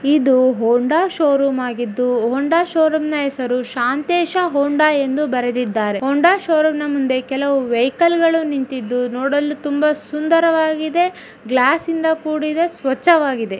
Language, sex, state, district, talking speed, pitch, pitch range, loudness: Kannada, female, Karnataka, Dharwad, 125 wpm, 285 Hz, 255-320 Hz, -17 LUFS